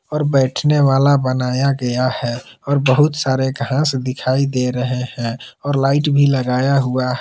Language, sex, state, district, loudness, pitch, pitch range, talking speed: Hindi, male, Jharkhand, Palamu, -17 LUFS, 130 Hz, 125-140 Hz, 160 wpm